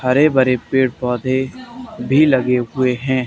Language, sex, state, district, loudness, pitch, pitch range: Hindi, male, Haryana, Charkhi Dadri, -16 LUFS, 130 Hz, 125-135 Hz